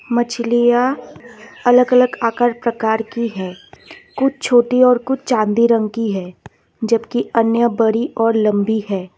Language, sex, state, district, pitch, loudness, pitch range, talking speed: Hindi, female, Assam, Kamrup Metropolitan, 230 Hz, -16 LUFS, 220-240 Hz, 135 wpm